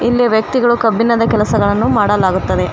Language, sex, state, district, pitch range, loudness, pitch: Kannada, female, Karnataka, Koppal, 210-240 Hz, -13 LUFS, 225 Hz